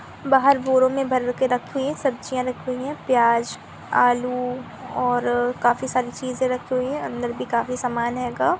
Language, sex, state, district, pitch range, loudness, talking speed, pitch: Hindi, female, Andhra Pradesh, Anantapur, 245-260 Hz, -22 LUFS, 190 wpm, 250 Hz